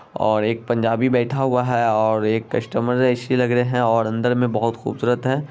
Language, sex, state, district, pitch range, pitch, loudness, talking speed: Hindi, male, Bihar, Saharsa, 115-125 Hz, 120 Hz, -20 LUFS, 205 wpm